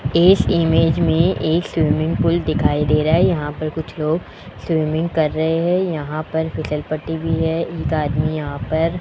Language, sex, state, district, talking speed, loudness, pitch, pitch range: Hindi, male, Rajasthan, Jaipur, 195 wpm, -19 LUFS, 160 Hz, 155-165 Hz